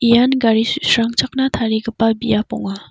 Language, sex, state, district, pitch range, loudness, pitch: Garo, female, Meghalaya, West Garo Hills, 225-240 Hz, -16 LUFS, 230 Hz